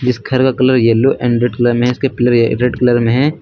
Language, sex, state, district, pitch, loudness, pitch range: Hindi, male, Uttar Pradesh, Lucknow, 125 Hz, -13 LUFS, 120-130 Hz